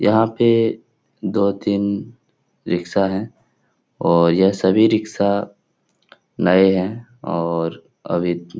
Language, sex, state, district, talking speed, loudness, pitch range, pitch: Hindi, male, Uttar Pradesh, Etah, 100 wpm, -19 LUFS, 90-110 Hz, 100 Hz